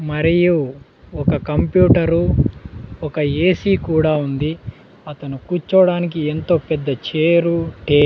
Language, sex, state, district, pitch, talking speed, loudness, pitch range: Telugu, male, Andhra Pradesh, Sri Satya Sai, 155 Hz, 95 wpm, -17 LUFS, 145-170 Hz